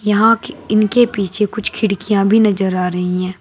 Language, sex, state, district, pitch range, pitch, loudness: Hindi, female, Uttar Pradesh, Saharanpur, 190-220 Hz, 210 Hz, -15 LUFS